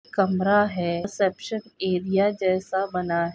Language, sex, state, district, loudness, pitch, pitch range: Hindi, female, Maharashtra, Sindhudurg, -24 LUFS, 190 Hz, 180-200 Hz